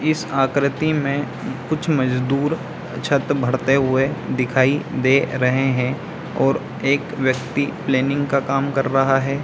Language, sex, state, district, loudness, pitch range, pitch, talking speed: Hindi, male, Bihar, Samastipur, -20 LUFS, 130-140 Hz, 135 Hz, 135 wpm